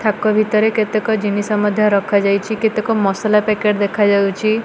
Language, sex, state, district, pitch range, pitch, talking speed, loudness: Odia, female, Odisha, Malkangiri, 205-215 Hz, 210 Hz, 155 wpm, -16 LUFS